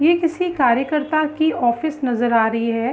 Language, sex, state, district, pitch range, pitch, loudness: Hindi, female, Uttar Pradesh, Hamirpur, 240-315 Hz, 275 Hz, -19 LUFS